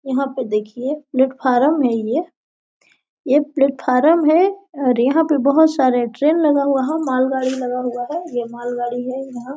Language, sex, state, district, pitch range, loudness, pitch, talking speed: Hindi, female, Jharkhand, Sahebganj, 250-300 Hz, -18 LUFS, 265 Hz, 195 wpm